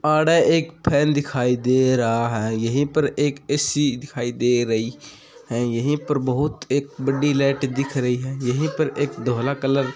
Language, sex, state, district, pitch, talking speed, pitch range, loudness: Hindi, male, Rajasthan, Churu, 135 Hz, 180 wpm, 125-145 Hz, -21 LUFS